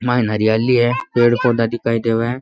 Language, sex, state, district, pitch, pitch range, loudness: Rajasthani, male, Rajasthan, Nagaur, 120 Hz, 115-120 Hz, -16 LUFS